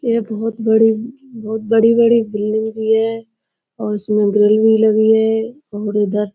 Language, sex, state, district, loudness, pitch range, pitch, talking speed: Hindi, female, Uttar Pradesh, Budaun, -15 LUFS, 210-225 Hz, 220 Hz, 160 wpm